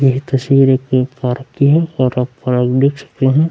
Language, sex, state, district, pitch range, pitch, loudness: Hindi, male, Bihar, Vaishali, 130-140 Hz, 135 Hz, -15 LUFS